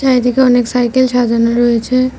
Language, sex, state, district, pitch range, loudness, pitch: Bengali, female, West Bengal, Cooch Behar, 240-255 Hz, -12 LUFS, 245 Hz